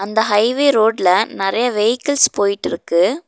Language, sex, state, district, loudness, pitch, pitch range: Tamil, female, Tamil Nadu, Nilgiris, -16 LUFS, 220 Hz, 200-250 Hz